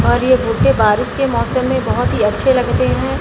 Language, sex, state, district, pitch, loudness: Hindi, female, Bihar, Gaya, 235 Hz, -15 LUFS